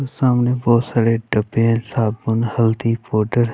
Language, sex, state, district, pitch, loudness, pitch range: Hindi, male, Chhattisgarh, Raipur, 115 Hz, -18 LUFS, 115-120 Hz